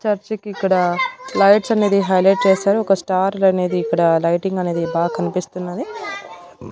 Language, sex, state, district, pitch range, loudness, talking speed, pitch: Telugu, female, Andhra Pradesh, Annamaya, 180-205 Hz, -18 LUFS, 125 wpm, 190 Hz